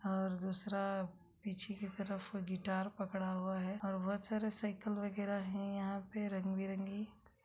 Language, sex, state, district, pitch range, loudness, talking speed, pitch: Hindi, female, Uttarakhand, Tehri Garhwal, 190-205 Hz, -41 LUFS, 155 wpm, 195 Hz